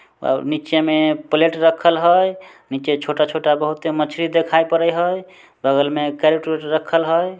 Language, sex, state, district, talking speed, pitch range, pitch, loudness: Maithili, male, Bihar, Samastipur, 155 wpm, 150-165 Hz, 160 Hz, -18 LUFS